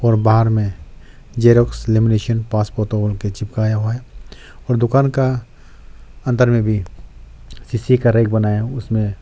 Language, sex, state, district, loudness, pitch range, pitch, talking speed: Hindi, male, Arunachal Pradesh, Lower Dibang Valley, -17 LUFS, 105-120 Hz, 110 Hz, 145 wpm